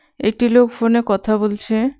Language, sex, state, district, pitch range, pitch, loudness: Bengali, female, West Bengal, Cooch Behar, 215-245 Hz, 230 Hz, -17 LUFS